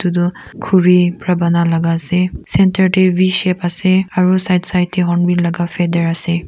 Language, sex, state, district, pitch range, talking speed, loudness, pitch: Nagamese, female, Nagaland, Kohima, 175-185 Hz, 175 wpm, -14 LUFS, 180 Hz